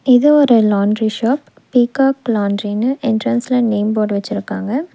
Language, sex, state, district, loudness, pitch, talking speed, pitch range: Tamil, female, Tamil Nadu, Nilgiris, -15 LUFS, 235 Hz, 120 wpm, 210-260 Hz